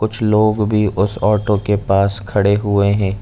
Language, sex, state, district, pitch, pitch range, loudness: Hindi, male, Chhattisgarh, Bilaspur, 105 Hz, 100-105 Hz, -15 LUFS